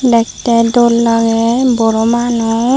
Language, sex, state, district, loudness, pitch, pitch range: Chakma, female, Tripura, Dhalai, -12 LUFS, 230 Hz, 230-240 Hz